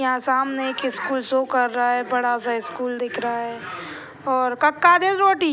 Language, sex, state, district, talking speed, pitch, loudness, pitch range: Hindi, male, Bihar, Purnia, 150 wpm, 255 Hz, -21 LUFS, 245-270 Hz